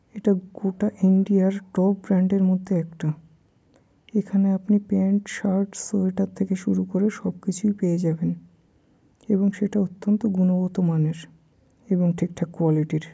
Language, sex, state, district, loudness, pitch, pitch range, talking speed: Bengali, male, West Bengal, Kolkata, -23 LUFS, 190 Hz, 175-200 Hz, 130 wpm